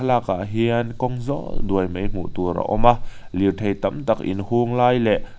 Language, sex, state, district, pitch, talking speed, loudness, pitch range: Mizo, male, Mizoram, Aizawl, 110 Hz, 200 wpm, -22 LUFS, 95-120 Hz